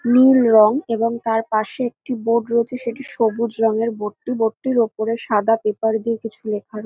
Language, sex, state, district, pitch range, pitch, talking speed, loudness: Bengali, female, West Bengal, North 24 Parganas, 220-235 Hz, 225 Hz, 190 wpm, -19 LUFS